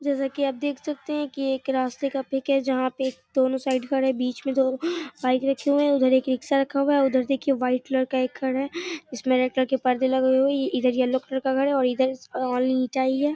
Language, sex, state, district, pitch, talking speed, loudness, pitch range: Hindi, female, Bihar, Darbhanga, 265 Hz, 245 wpm, -24 LUFS, 260-275 Hz